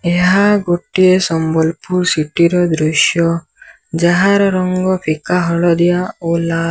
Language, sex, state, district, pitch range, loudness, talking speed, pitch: Odia, male, Odisha, Sambalpur, 165-185 Hz, -14 LUFS, 105 wpm, 175 Hz